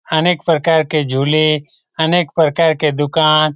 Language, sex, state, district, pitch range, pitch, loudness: Hindi, male, Bihar, Lakhisarai, 150-160 Hz, 155 Hz, -14 LUFS